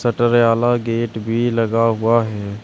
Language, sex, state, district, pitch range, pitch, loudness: Hindi, male, Uttar Pradesh, Shamli, 110-120 Hz, 115 Hz, -17 LUFS